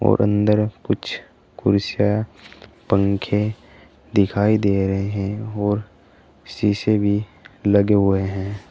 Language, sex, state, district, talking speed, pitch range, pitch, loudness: Hindi, male, Uttar Pradesh, Saharanpur, 105 wpm, 95-105 Hz, 100 Hz, -20 LUFS